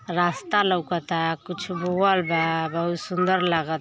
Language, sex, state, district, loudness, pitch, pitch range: Hindi, female, Uttar Pradesh, Ghazipur, -24 LUFS, 175 Hz, 165-185 Hz